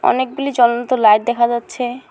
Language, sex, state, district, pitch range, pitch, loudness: Bengali, female, West Bengal, Alipurduar, 235-255 Hz, 240 Hz, -16 LUFS